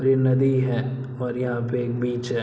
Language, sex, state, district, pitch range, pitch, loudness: Hindi, male, Bihar, Araria, 120-130 Hz, 125 Hz, -24 LUFS